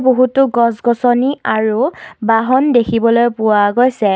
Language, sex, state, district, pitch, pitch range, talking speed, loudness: Assamese, female, Assam, Kamrup Metropolitan, 235 Hz, 225-255 Hz, 100 wpm, -13 LUFS